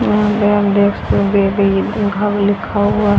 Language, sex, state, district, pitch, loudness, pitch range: Hindi, female, Haryana, Jhajjar, 205 Hz, -15 LUFS, 200-210 Hz